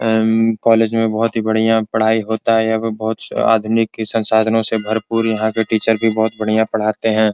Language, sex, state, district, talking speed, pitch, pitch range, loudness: Hindi, male, Bihar, Supaul, 205 wpm, 110 Hz, 110-115 Hz, -16 LUFS